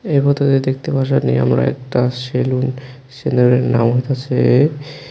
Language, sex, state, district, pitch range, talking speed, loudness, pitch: Bengali, male, Tripura, West Tripura, 125-135 Hz, 115 wpm, -16 LUFS, 130 Hz